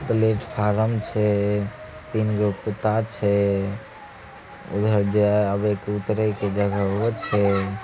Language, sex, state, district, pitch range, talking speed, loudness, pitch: Angika, male, Bihar, Begusarai, 100-110 Hz, 100 wpm, -23 LUFS, 105 Hz